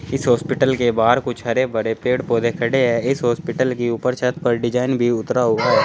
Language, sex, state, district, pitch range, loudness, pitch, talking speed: Hindi, male, Uttar Pradesh, Saharanpur, 120-130 Hz, -19 LUFS, 125 Hz, 225 wpm